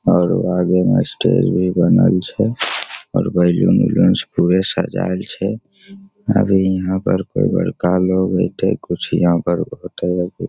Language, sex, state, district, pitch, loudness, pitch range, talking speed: Maithili, male, Bihar, Begusarai, 90 Hz, -17 LUFS, 90-95 Hz, 145 wpm